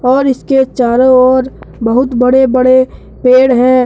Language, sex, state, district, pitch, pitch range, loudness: Hindi, male, Jharkhand, Deoghar, 255 Hz, 250-260 Hz, -10 LUFS